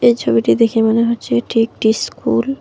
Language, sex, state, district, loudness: Bengali, female, West Bengal, Alipurduar, -15 LUFS